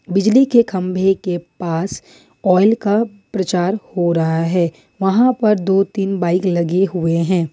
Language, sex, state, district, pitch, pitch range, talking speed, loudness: Hindi, female, Jharkhand, Ranchi, 185 Hz, 175-205 Hz, 150 wpm, -17 LUFS